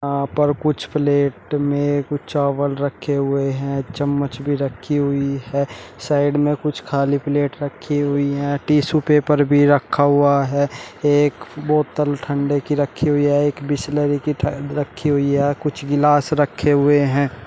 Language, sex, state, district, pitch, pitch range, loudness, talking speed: Hindi, male, Uttar Pradesh, Shamli, 145 Hz, 140-145 Hz, -19 LUFS, 165 wpm